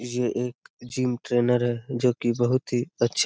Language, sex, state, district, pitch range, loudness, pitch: Hindi, male, Jharkhand, Sahebganj, 120-125 Hz, -25 LUFS, 120 Hz